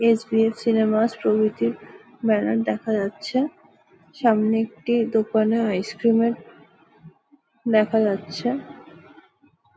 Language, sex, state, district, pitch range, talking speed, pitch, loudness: Bengali, female, West Bengal, Jalpaiguri, 210-230 Hz, 80 wpm, 225 Hz, -22 LUFS